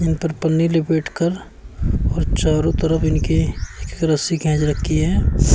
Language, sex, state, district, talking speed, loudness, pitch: Hindi, male, Uttar Pradesh, Shamli, 140 wpm, -19 LUFS, 160 Hz